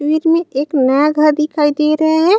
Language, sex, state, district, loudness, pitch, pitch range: Chhattisgarhi, female, Chhattisgarh, Raigarh, -14 LUFS, 305 Hz, 295-315 Hz